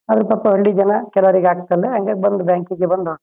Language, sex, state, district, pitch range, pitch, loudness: Kannada, male, Karnataka, Shimoga, 180-205 Hz, 195 Hz, -16 LUFS